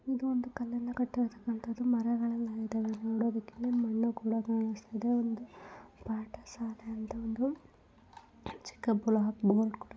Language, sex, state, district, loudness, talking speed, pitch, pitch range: Kannada, female, Karnataka, Belgaum, -34 LUFS, 115 wpm, 230 Hz, 225-240 Hz